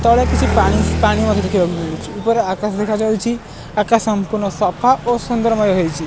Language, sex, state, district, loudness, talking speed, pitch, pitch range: Odia, male, Odisha, Malkangiri, -17 LUFS, 160 wpm, 215 Hz, 195-230 Hz